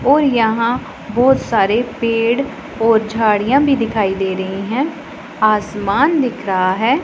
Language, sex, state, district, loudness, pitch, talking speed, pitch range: Hindi, female, Punjab, Pathankot, -16 LUFS, 230 Hz, 135 wpm, 210-270 Hz